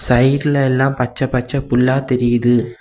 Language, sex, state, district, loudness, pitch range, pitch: Tamil, male, Tamil Nadu, Kanyakumari, -16 LUFS, 120-135 Hz, 125 Hz